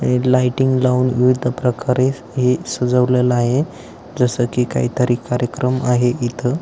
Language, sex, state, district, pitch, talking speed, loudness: Marathi, male, Maharashtra, Aurangabad, 125 Hz, 145 wpm, -17 LUFS